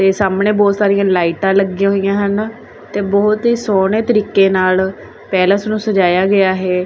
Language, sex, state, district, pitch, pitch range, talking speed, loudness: Punjabi, female, Punjab, Kapurthala, 195 Hz, 190-205 Hz, 165 wpm, -14 LUFS